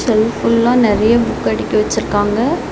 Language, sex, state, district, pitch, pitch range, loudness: Tamil, female, Tamil Nadu, Nilgiris, 230 Hz, 215-235 Hz, -14 LUFS